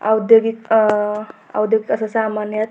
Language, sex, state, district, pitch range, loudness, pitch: Marathi, female, Maharashtra, Pune, 210-220 Hz, -17 LUFS, 220 Hz